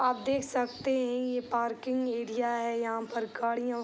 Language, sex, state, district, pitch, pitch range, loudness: Hindi, female, Bihar, East Champaran, 240 Hz, 235-255 Hz, -32 LUFS